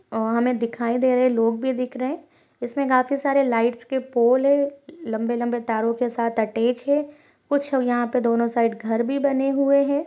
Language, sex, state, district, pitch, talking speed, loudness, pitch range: Hindi, female, Chhattisgarh, Sarguja, 250 Hz, 195 wpm, -22 LUFS, 235-275 Hz